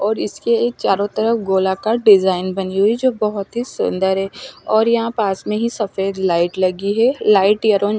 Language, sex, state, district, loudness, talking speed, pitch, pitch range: Hindi, male, Punjab, Fazilka, -17 LUFS, 195 wpm, 205 Hz, 195-230 Hz